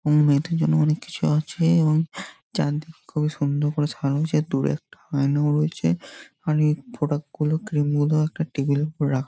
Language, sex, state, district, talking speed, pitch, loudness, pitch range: Bengali, male, West Bengal, Jhargram, 175 wpm, 150 Hz, -23 LUFS, 145-160 Hz